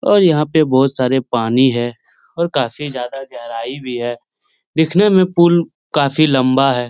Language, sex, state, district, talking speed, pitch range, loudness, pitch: Hindi, male, Bihar, Lakhisarai, 165 wpm, 125-165 Hz, -15 LUFS, 135 Hz